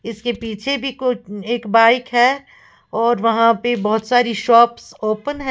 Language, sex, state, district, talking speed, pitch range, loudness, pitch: Hindi, female, Uttar Pradesh, Lalitpur, 165 wpm, 225-245 Hz, -17 LUFS, 235 Hz